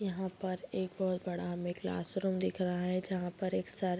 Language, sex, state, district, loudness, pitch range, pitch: Hindi, female, Bihar, Bhagalpur, -36 LUFS, 180-190 Hz, 185 Hz